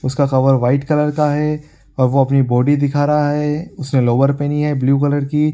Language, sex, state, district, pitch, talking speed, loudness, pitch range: Hindi, male, Bihar, Supaul, 145 Hz, 215 wpm, -16 LUFS, 135-150 Hz